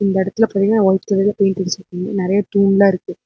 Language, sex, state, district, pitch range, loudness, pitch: Tamil, female, Tamil Nadu, Namakkal, 190-200 Hz, -16 LUFS, 195 Hz